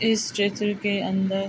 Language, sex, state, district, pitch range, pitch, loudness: Hindi, female, Bihar, Araria, 195-210 Hz, 205 Hz, -24 LUFS